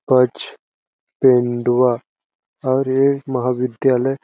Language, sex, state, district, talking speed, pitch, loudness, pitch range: Hindi, male, Chhattisgarh, Balrampur, 70 wpm, 130 Hz, -18 LUFS, 125-135 Hz